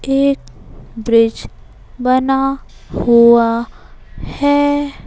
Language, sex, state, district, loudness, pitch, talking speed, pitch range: Hindi, male, Madhya Pradesh, Bhopal, -14 LUFS, 260 Hz, 60 wpm, 235-275 Hz